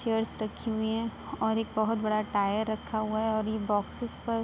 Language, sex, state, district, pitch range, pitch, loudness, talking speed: Hindi, female, Uttar Pradesh, Budaun, 215-225 Hz, 220 Hz, -30 LUFS, 230 wpm